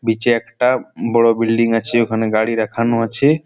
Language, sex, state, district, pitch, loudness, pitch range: Bengali, male, West Bengal, Jalpaiguri, 115 Hz, -17 LUFS, 115-120 Hz